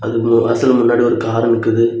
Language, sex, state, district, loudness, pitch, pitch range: Tamil, male, Tamil Nadu, Kanyakumari, -14 LUFS, 115 Hz, 115-120 Hz